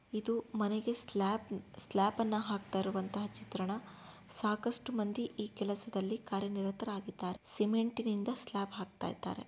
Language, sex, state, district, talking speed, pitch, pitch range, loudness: Kannada, female, Karnataka, Shimoga, 95 wpm, 210 Hz, 195-225 Hz, -37 LUFS